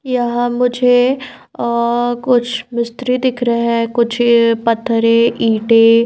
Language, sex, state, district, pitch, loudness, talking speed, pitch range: Hindi, female, Bihar, Patna, 240 Hz, -14 LUFS, 120 wpm, 230-245 Hz